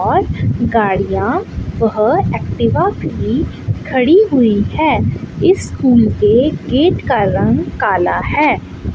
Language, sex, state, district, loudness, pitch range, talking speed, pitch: Hindi, female, Chandigarh, Chandigarh, -14 LUFS, 225-370 Hz, 100 wpm, 255 Hz